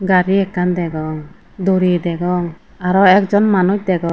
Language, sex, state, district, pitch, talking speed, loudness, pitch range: Chakma, female, Tripura, Unakoti, 180 Hz, 145 wpm, -16 LUFS, 175-190 Hz